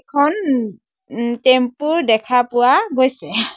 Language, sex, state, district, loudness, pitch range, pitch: Assamese, male, Assam, Sonitpur, -16 LUFS, 240-275 Hz, 255 Hz